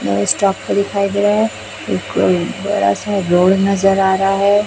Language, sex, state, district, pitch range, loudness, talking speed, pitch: Hindi, female, Chhattisgarh, Raipur, 190-200 Hz, -15 LUFS, 180 wpm, 195 Hz